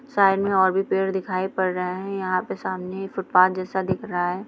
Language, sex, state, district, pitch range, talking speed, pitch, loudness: Hindi, female, Bihar, Sitamarhi, 185-195 Hz, 230 wpm, 190 Hz, -23 LUFS